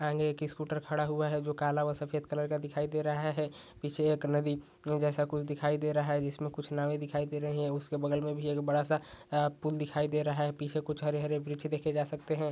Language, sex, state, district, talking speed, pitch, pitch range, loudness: Hindi, male, Bihar, Saran, 250 wpm, 150 Hz, 145-150 Hz, -33 LUFS